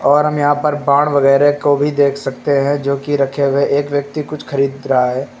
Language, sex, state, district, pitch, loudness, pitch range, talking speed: Hindi, male, Uttar Pradesh, Lucknow, 140 Hz, -15 LUFS, 140-145 Hz, 245 wpm